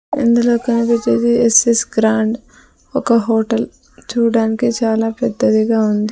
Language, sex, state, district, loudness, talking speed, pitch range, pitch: Telugu, female, Andhra Pradesh, Sri Satya Sai, -15 LUFS, 110 wpm, 225-235 Hz, 235 Hz